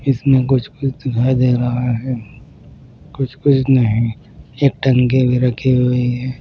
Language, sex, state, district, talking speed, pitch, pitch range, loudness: Hindi, male, Maharashtra, Washim, 140 wpm, 130 Hz, 125-135 Hz, -16 LUFS